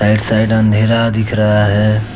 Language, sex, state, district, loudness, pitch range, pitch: Hindi, male, Jharkhand, Deoghar, -13 LUFS, 105-110 Hz, 110 Hz